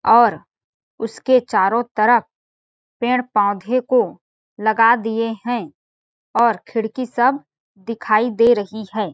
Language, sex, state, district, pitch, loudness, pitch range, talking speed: Hindi, female, Chhattisgarh, Balrampur, 230 Hz, -18 LUFS, 215-245 Hz, 110 wpm